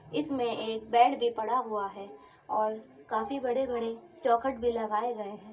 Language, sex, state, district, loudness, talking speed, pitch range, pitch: Hindi, female, Uttar Pradesh, Ghazipur, -30 LUFS, 165 wpm, 215-240 Hz, 230 Hz